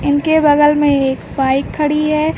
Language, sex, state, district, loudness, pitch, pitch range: Hindi, female, Uttar Pradesh, Lucknow, -14 LUFS, 295 Hz, 280-305 Hz